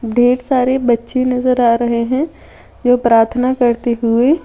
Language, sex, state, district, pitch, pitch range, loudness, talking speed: Hindi, female, Jharkhand, Deoghar, 245 Hz, 235-255 Hz, -14 LUFS, 150 wpm